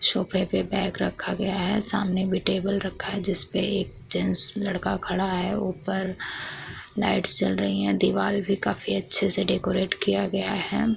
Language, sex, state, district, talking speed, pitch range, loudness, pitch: Hindi, female, Bihar, Vaishali, 170 wpm, 180-200 Hz, -21 LUFS, 190 Hz